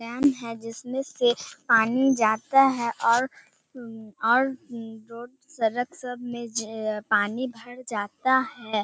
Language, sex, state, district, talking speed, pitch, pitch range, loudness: Hindi, male, Bihar, Kishanganj, 130 wpm, 235 Hz, 225-255 Hz, -25 LUFS